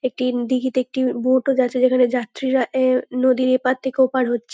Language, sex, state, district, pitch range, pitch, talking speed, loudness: Bengali, female, West Bengal, North 24 Parganas, 250-260 Hz, 255 Hz, 200 wpm, -19 LUFS